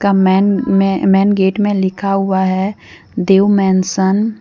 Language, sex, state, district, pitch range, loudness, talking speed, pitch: Hindi, female, Jharkhand, Deoghar, 190-200 Hz, -13 LUFS, 135 wpm, 195 Hz